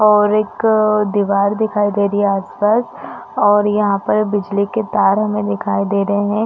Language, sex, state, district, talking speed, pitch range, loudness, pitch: Hindi, female, Chhattisgarh, Bastar, 165 wpm, 200-215 Hz, -16 LUFS, 205 Hz